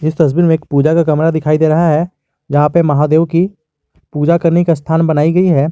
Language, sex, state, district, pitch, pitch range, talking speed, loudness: Hindi, male, Jharkhand, Garhwa, 160 Hz, 150-170 Hz, 230 wpm, -12 LUFS